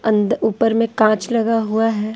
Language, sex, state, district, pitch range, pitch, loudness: Hindi, female, Bihar, Patna, 215-230 Hz, 225 Hz, -17 LUFS